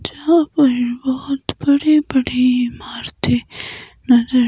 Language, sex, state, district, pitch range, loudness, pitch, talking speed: Hindi, female, Himachal Pradesh, Shimla, 245-285 Hz, -17 LUFS, 260 Hz, 95 wpm